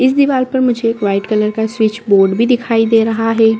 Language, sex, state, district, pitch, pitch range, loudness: Hindi, female, Chhattisgarh, Bastar, 225 Hz, 215-245 Hz, -13 LUFS